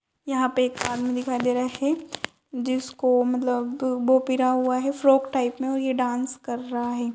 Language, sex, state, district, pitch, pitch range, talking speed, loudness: Kumaoni, female, Uttarakhand, Uttarkashi, 255 Hz, 250-265 Hz, 195 wpm, -24 LUFS